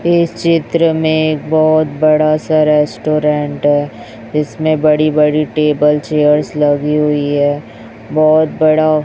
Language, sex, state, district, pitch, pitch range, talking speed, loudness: Hindi, male, Chhattisgarh, Raipur, 155 Hz, 150-155 Hz, 120 wpm, -13 LUFS